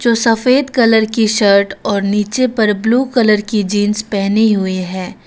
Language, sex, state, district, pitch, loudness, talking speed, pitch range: Hindi, female, Arunachal Pradesh, Papum Pare, 215 Hz, -14 LUFS, 160 wpm, 200-230 Hz